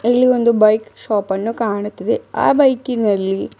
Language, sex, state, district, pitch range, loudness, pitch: Kannada, female, Karnataka, Bidar, 205-240 Hz, -16 LUFS, 220 Hz